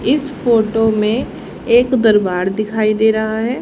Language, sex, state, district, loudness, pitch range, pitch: Hindi, female, Haryana, Charkhi Dadri, -15 LUFS, 215-240 Hz, 220 Hz